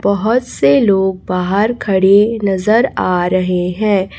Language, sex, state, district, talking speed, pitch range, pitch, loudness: Hindi, female, Chhattisgarh, Raipur, 130 wpm, 185-210 Hz, 195 Hz, -14 LUFS